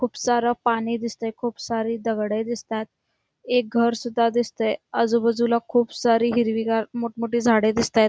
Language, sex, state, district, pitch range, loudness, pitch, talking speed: Marathi, female, Karnataka, Belgaum, 225-240 Hz, -23 LUFS, 235 Hz, 165 wpm